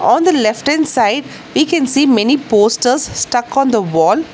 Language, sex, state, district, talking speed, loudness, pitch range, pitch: English, female, Telangana, Hyderabad, 195 wpm, -13 LUFS, 225-310 Hz, 270 Hz